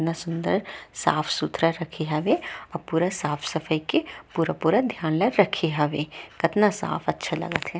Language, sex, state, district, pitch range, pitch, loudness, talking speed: Chhattisgarhi, female, Chhattisgarh, Rajnandgaon, 155-185 Hz, 165 Hz, -25 LUFS, 145 wpm